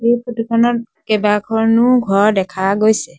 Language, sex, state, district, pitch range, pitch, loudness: Assamese, male, Assam, Sonitpur, 210-235 Hz, 225 Hz, -15 LUFS